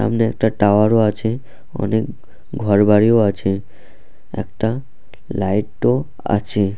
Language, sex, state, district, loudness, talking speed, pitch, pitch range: Bengali, male, West Bengal, Purulia, -18 LUFS, 125 wpm, 105 Hz, 100-115 Hz